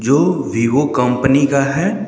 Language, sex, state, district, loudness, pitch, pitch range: Hindi, male, Uttar Pradesh, Lucknow, -15 LUFS, 140 Hz, 125-150 Hz